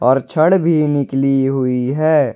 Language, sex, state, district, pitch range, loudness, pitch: Hindi, male, Jharkhand, Ranchi, 130-155 Hz, -15 LUFS, 135 Hz